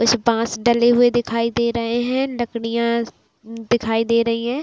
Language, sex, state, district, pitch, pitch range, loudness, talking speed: Hindi, female, Bihar, Saran, 235 Hz, 230-240 Hz, -19 LUFS, 170 wpm